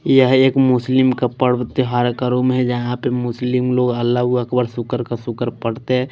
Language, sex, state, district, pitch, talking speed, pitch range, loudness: Hindi, male, Chhattisgarh, Raipur, 125 Hz, 205 wpm, 120-130 Hz, -18 LUFS